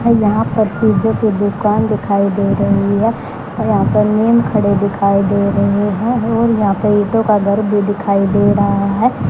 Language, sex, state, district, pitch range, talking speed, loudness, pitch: Hindi, male, Haryana, Charkhi Dadri, 200-220 Hz, 195 wpm, -14 LUFS, 205 Hz